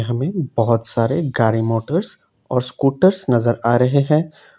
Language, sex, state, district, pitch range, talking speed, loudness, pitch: Hindi, male, Assam, Kamrup Metropolitan, 115-150 Hz, 145 wpm, -18 LUFS, 125 Hz